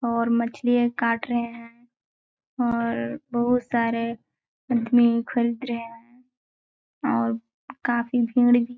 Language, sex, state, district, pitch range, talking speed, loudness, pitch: Hindi, female, Chhattisgarh, Balrampur, 230-245 Hz, 110 wpm, -24 LUFS, 235 Hz